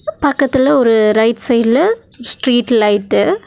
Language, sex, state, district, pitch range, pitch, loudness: Tamil, female, Tamil Nadu, Nilgiris, 225-285 Hz, 245 Hz, -13 LUFS